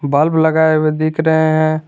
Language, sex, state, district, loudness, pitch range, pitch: Hindi, male, Jharkhand, Garhwa, -14 LUFS, 155-160 Hz, 155 Hz